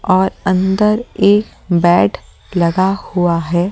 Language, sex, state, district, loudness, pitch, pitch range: Hindi, male, Delhi, New Delhi, -15 LUFS, 185 Hz, 175-200 Hz